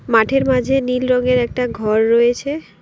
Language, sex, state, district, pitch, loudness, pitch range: Bengali, female, West Bengal, Alipurduar, 250 Hz, -16 LUFS, 235-265 Hz